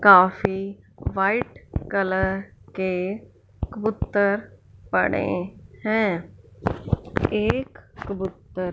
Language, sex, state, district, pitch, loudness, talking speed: Hindi, female, Punjab, Fazilka, 190 Hz, -24 LUFS, 60 wpm